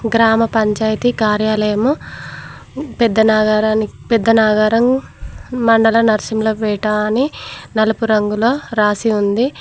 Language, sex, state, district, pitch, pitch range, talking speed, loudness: Telugu, female, Telangana, Mahabubabad, 220 Hz, 215-230 Hz, 75 wpm, -15 LUFS